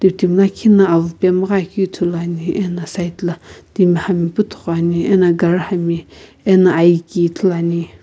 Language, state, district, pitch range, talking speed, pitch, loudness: Sumi, Nagaland, Kohima, 170-190 Hz, 150 wpm, 180 Hz, -15 LUFS